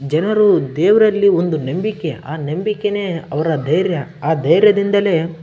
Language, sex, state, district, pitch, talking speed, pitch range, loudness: Kannada, male, Karnataka, Bellary, 170 Hz, 135 wpm, 155-205 Hz, -16 LUFS